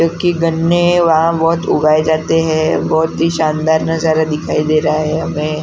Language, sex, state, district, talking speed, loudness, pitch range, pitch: Hindi, male, Maharashtra, Gondia, 170 wpm, -14 LUFS, 155-165 Hz, 160 Hz